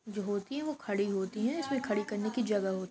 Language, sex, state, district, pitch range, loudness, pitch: Hindi, female, Uttar Pradesh, Jalaun, 200-245 Hz, -34 LUFS, 210 Hz